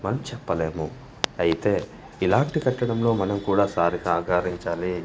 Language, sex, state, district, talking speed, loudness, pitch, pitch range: Telugu, male, Andhra Pradesh, Manyam, 105 wpm, -24 LUFS, 90 Hz, 85-115 Hz